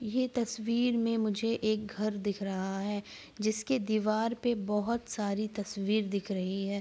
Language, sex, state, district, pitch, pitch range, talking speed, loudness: Hindi, female, Bihar, Araria, 215 Hz, 200-230 Hz, 160 wpm, -32 LUFS